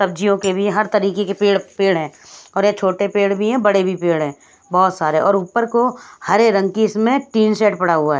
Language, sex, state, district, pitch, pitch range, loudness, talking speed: Hindi, female, Punjab, Pathankot, 200 Hz, 190-210 Hz, -17 LUFS, 250 wpm